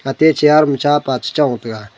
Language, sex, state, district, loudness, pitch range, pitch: Wancho, male, Arunachal Pradesh, Longding, -14 LUFS, 125-150 Hz, 140 Hz